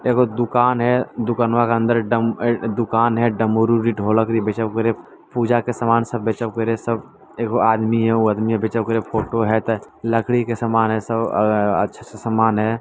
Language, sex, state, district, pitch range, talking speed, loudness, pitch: Maithili, male, Bihar, Lakhisarai, 110-120 Hz, 190 wpm, -19 LUFS, 115 Hz